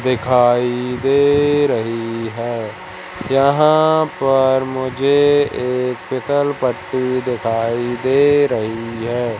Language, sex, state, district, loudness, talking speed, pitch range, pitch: Hindi, male, Madhya Pradesh, Katni, -17 LUFS, 90 wpm, 120-145 Hz, 130 Hz